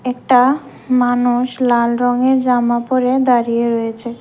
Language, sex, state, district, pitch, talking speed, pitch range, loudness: Bengali, female, Tripura, West Tripura, 245 Hz, 115 wpm, 240-255 Hz, -15 LUFS